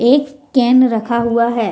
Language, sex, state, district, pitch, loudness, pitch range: Hindi, female, Jharkhand, Deoghar, 240 Hz, -14 LUFS, 235-260 Hz